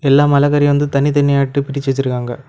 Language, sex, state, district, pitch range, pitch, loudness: Tamil, male, Tamil Nadu, Kanyakumari, 135-145 Hz, 140 Hz, -14 LUFS